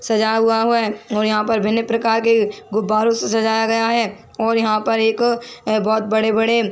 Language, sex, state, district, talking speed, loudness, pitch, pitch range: Hindi, female, Chhattisgarh, Bilaspur, 205 wpm, -18 LUFS, 225 Hz, 215-230 Hz